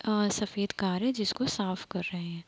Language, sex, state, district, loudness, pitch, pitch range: Hindi, female, Uttar Pradesh, Deoria, -31 LUFS, 200 Hz, 185-210 Hz